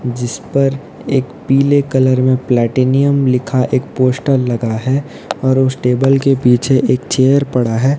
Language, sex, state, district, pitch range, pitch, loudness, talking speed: Hindi, male, Odisha, Nuapada, 125-135 Hz, 130 Hz, -14 LUFS, 160 wpm